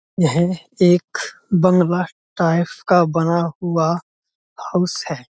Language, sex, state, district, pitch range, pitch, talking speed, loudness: Hindi, male, Uttar Pradesh, Budaun, 165-180 Hz, 175 Hz, 100 wpm, -18 LUFS